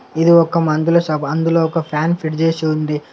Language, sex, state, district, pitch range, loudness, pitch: Telugu, male, Telangana, Komaram Bheem, 155-165 Hz, -16 LUFS, 160 Hz